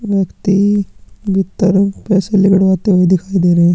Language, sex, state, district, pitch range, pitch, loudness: Hindi, male, Chhattisgarh, Sukma, 185-200 Hz, 195 Hz, -13 LUFS